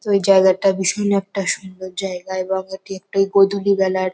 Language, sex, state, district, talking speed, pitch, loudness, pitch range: Bengali, female, West Bengal, Kolkata, 175 wpm, 190 Hz, -18 LUFS, 190-195 Hz